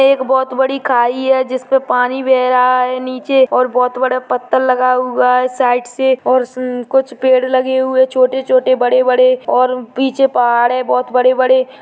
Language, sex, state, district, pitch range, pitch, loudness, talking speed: Hindi, female, Chhattisgarh, Bastar, 250-260 Hz, 255 Hz, -13 LUFS, 190 wpm